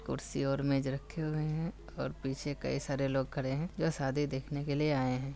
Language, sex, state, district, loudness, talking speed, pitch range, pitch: Hindi, male, Bihar, Kishanganj, -35 LUFS, 225 wpm, 135-150 Hz, 140 Hz